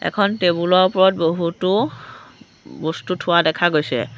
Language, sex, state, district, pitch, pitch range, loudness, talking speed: Assamese, female, Assam, Sonitpur, 175 Hz, 160-185 Hz, -18 LUFS, 115 wpm